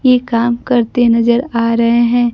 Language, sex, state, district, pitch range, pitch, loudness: Hindi, female, Bihar, Kaimur, 235-245 Hz, 235 Hz, -13 LUFS